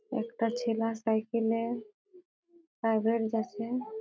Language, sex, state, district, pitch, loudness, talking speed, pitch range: Bengali, female, West Bengal, Jhargram, 230 Hz, -31 LUFS, 105 wpm, 225-250 Hz